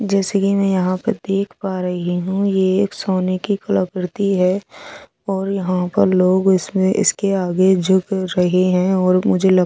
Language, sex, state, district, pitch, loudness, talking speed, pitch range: Hindi, female, Odisha, Sambalpur, 190 Hz, -17 LUFS, 175 wpm, 185-195 Hz